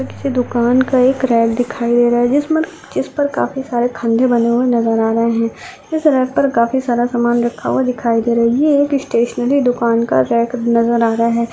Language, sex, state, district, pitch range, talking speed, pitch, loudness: Hindi, female, Rajasthan, Churu, 235-260 Hz, 215 wpm, 240 Hz, -15 LUFS